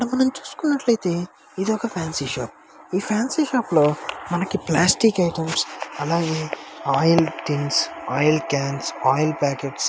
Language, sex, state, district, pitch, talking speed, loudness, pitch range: Telugu, male, Andhra Pradesh, Srikakulam, 165 Hz, 115 wpm, -22 LUFS, 145-215 Hz